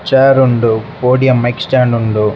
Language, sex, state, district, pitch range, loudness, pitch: Tulu, male, Karnataka, Dakshina Kannada, 115-130 Hz, -12 LUFS, 125 Hz